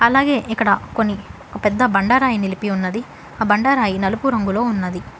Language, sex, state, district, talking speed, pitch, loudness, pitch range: Telugu, female, Telangana, Hyderabad, 150 wpm, 215 Hz, -18 LUFS, 195-240 Hz